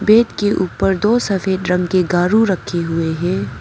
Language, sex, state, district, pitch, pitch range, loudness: Hindi, female, Arunachal Pradesh, Papum Pare, 185 Hz, 175-205 Hz, -17 LUFS